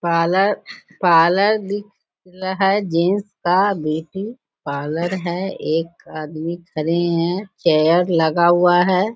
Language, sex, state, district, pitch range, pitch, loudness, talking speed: Hindi, female, Bihar, Jahanabad, 165-195 Hz, 175 Hz, -18 LUFS, 110 wpm